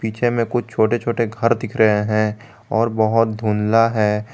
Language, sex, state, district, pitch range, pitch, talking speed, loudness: Hindi, male, Jharkhand, Garhwa, 110-115 Hz, 115 Hz, 180 wpm, -18 LUFS